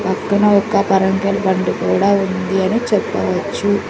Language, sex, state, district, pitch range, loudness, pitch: Telugu, female, Andhra Pradesh, Sri Satya Sai, 190-205 Hz, -16 LUFS, 200 Hz